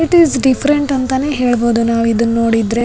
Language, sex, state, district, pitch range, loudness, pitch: Kannada, female, Karnataka, Raichur, 230-275 Hz, -14 LUFS, 250 Hz